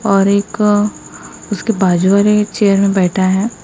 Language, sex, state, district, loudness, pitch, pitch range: Hindi, female, Maharashtra, Gondia, -13 LUFS, 200 Hz, 195-210 Hz